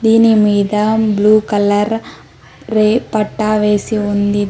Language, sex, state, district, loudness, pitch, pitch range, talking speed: Telugu, female, Telangana, Mahabubabad, -13 LUFS, 215 Hz, 205-220 Hz, 95 wpm